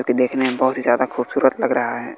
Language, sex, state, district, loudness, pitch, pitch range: Hindi, male, Bihar, West Champaran, -19 LUFS, 130 Hz, 125-130 Hz